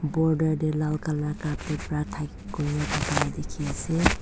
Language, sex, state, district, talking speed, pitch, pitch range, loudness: Nagamese, female, Nagaland, Dimapur, 130 wpm, 155 Hz, 150-155 Hz, -27 LUFS